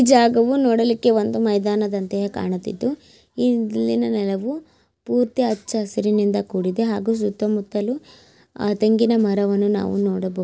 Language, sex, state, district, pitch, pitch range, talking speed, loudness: Kannada, female, Karnataka, Belgaum, 210 Hz, 200-230 Hz, 110 wpm, -20 LUFS